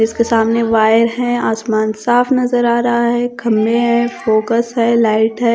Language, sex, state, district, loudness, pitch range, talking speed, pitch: Hindi, female, Punjab, Kapurthala, -14 LUFS, 225-240 Hz, 175 wpm, 230 Hz